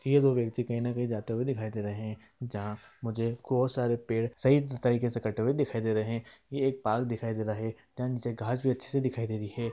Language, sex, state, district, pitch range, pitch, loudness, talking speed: Hindi, male, Bihar, East Champaran, 110-125 Hz, 120 Hz, -31 LUFS, 265 wpm